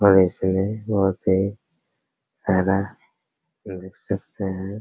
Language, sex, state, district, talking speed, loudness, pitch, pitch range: Hindi, male, Bihar, Araria, 110 wpm, -22 LUFS, 95 Hz, 95-100 Hz